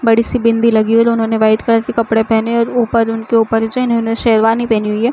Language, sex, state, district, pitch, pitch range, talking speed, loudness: Hindi, female, Uttar Pradesh, Budaun, 225 Hz, 225-230 Hz, 290 wpm, -13 LUFS